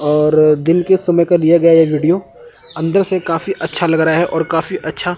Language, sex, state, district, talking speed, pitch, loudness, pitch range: Hindi, male, Chandigarh, Chandigarh, 220 wpm, 170 Hz, -14 LUFS, 160-180 Hz